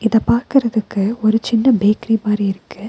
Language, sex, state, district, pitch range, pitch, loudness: Tamil, female, Tamil Nadu, Nilgiris, 210-230 Hz, 220 Hz, -16 LUFS